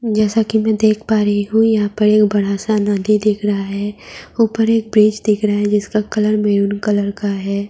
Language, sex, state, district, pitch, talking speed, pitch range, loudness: Hindi, female, Uttar Pradesh, Budaun, 210 Hz, 220 wpm, 205-215 Hz, -16 LUFS